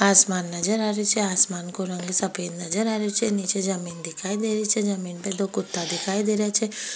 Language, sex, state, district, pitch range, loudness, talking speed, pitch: Rajasthani, female, Rajasthan, Nagaur, 180-210 Hz, -23 LUFS, 235 wpm, 195 Hz